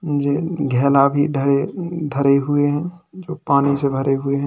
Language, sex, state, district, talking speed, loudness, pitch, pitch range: Hindi, male, Uttar Pradesh, Lalitpur, 120 wpm, -18 LUFS, 140 Hz, 140-150 Hz